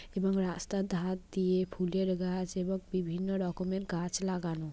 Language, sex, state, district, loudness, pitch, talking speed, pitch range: Bengali, female, West Bengal, Malda, -34 LUFS, 185 Hz, 140 wpm, 180-190 Hz